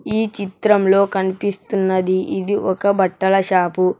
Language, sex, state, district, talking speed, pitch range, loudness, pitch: Telugu, male, Telangana, Hyderabad, 120 wpm, 185-200 Hz, -18 LUFS, 195 Hz